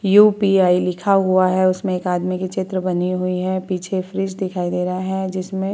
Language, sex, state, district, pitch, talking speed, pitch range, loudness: Hindi, female, Bihar, Vaishali, 185 Hz, 210 wpm, 185-190 Hz, -19 LUFS